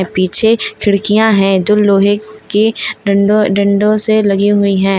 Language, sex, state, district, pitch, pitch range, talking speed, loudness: Hindi, female, Uttar Pradesh, Lalitpur, 205 Hz, 195-215 Hz, 145 wpm, -12 LUFS